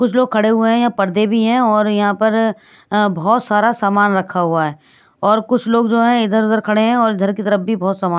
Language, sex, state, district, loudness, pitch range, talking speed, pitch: Hindi, female, Punjab, Pathankot, -15 LUFS, 205-230 Hz, 270 wpm, 215 Hz